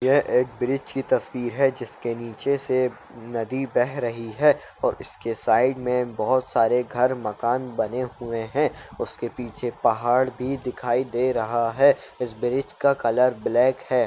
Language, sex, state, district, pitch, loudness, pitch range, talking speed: Kumaoni, male, Uttarakhand, Uttarkashi, 125 Hz, -23 LUFS, 120-130 Hz, 160 wpm